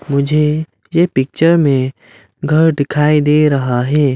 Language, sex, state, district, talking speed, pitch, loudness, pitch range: Hindi, male, Arunachal Pradesh, Lower Dibang Valley, 130 wpm, 150 Hz, -14 LUFS, 135-155 Hz